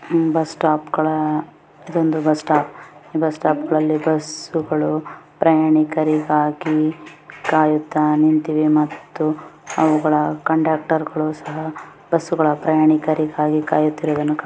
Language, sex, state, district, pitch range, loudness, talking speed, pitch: Kannada, female, Karnataka, Bellary, 155-160 Hz, -19 LUFS, 65 wpm, 155 Hz